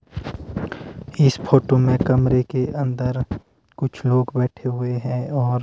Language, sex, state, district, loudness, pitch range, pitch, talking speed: Hindi, male, Himachal Pradesh, Shimla, -21 LUFS, 125-135 Hz, 125 Hz, 130 wpm